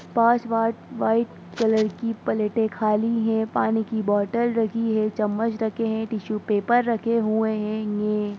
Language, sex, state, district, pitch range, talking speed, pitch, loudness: Hindi, female, Bihar, Saran, 215-230 Hz, 165 wpm, 220 Hz, -23 LUFS